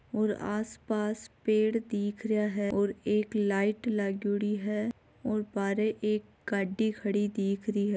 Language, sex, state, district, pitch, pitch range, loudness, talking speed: Marwari, female, Rajasthan, Nagaur, 210 Hz, 205-215 Hz, -31 LUFS, 145 wpm